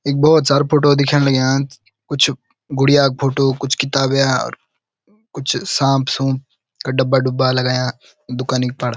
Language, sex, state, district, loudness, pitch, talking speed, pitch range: Garhwali, male, Uttarakhand, Uttarkashi, -16 LUFS, 135 Hz, 140 wpm, 130-140 Hz